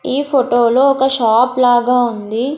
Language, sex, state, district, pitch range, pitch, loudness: Telugu, female, Andhra Pradesh, Sri Satya Sai, 240-265 Hz, 250 Hz, -13 LUFS